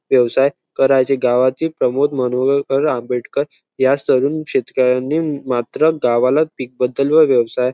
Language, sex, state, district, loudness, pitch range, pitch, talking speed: Marathi, male, Maharashtra, Chandrapur, -16 LUFS, 125-145 Hz, 135 Hz, 115 wpm